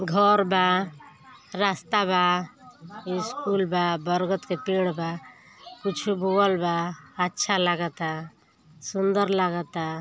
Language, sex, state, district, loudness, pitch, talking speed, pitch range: Hindi, female, Uttar Pradesh, Ghazipur, -25 LUFS, 185 Hz, 115 wpm, 170-200 Hz